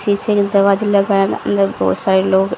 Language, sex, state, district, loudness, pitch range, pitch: Hindi, female, Haryana, Rohtak, -15 LUFS, 195-200 Hz, 200 Hz